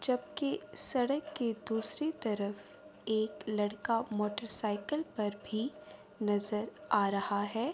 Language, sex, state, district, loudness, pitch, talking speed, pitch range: Urdu, female, Andhra Pradesh, Anantapur, -35 LUFS, 215 Hz, 115 wpm, 205-240 Hz